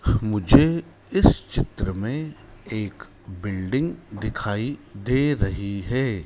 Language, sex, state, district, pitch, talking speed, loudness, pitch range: Hindi, male, Madhya Pradesh, Dhar, 110 Hz, 95 wpm, -24 LUFS, 100-130 Hz